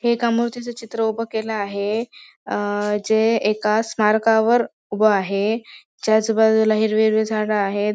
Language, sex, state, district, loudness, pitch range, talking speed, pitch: Marathi, female, Maharashtra, Sindhudurg, -20 LUFS, 210-225 Hz, 145 wpm, 220 Hz